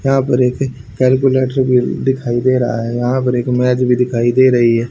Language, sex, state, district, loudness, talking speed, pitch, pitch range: Hindi, male, Haryana, Charkhi Dadri, -14 LUFS, 220 wpm, 125 Hz, 120-130 Hz